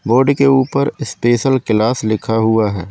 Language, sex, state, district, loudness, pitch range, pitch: Hindi, male, Madhya Pradesh, Katni, -15 LUFS, 110-135 Hz, 120 Hz